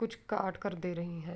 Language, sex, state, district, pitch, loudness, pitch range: Urdu, female, Andhra Pradesh, Anantapur, 180 Hz, -36 LUFS, 170-200 Hz